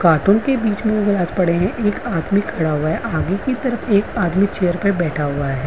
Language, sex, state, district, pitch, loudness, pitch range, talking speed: Hindi, female, Uttarakhand, Uttarkashi, 195 Hz, -18 LUFS, 170-215 Hz, 235 wpm